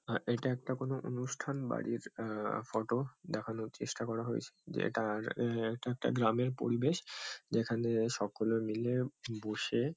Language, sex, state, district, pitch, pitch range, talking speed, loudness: Bengali, male, West Bengal, Kolkata, 115 Hz, 110-125 Hz, 145 wpm, -36 LUFS